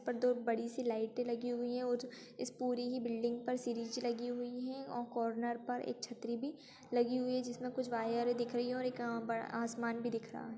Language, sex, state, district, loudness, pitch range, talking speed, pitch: Hindi, female, Bihar, Bhagalpur, -39 LUFS, 235-250 Hz, 245 wpm, 240 Hz